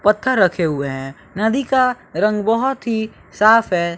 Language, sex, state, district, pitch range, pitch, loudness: Hindi, male, Bihar, West Champaran, 170-230 Hz, 215 Hz, -17 LUFS